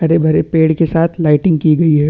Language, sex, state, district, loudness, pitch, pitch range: Hindi, male, Chhattisgarh, Bastar, -13 LUFS, 160 Hz, 155-165 Hz